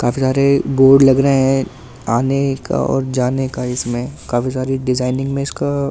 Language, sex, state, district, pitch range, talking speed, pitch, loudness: Hindi, male, Delhi, New Delhi, 125-135 Hz, 185 wpm, 130 Hz, -16 LUFS